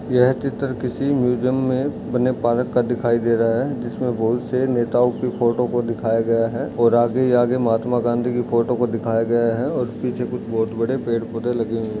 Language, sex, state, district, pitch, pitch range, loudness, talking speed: Hindi, male, Chhattisgarh, Raigarh, 120 Hz, 115-125 Hz, -20 LUFS, 215 wpm